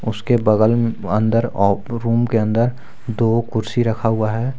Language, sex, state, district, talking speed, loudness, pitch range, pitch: Hindi, male, Jharkhand, Garhwa, 170 wpm, -18 LUFS, 110-120 Hz, 115 Hz